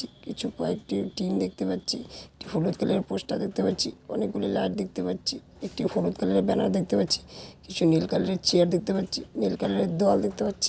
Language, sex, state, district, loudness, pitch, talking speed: Bengali, male, West Bengal, Malda, -27 LUFS, 175 Hz, 200 wpm